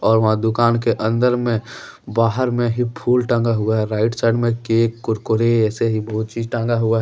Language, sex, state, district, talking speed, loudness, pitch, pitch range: Hindi, male, Jharkhand, Deoghar, 215 wpm, -19 LUFS, 115 Hz, 110-120 Hz